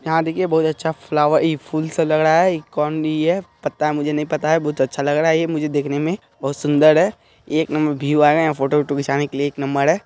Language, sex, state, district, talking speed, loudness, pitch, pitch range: Hindi, male, Bihar, Araria, 280 wpm, -19 LUFS, 150 Hz, 145-160 Hz